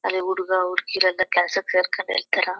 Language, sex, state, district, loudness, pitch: Kannada, female, Karnataka, Chamarajanagar, -22 LUFS, 185 Hz